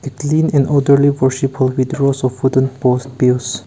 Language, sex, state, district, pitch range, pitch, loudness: English, male, Nagaland, Kohima, 130-140 Hz, 135 Hz, -15 LUFS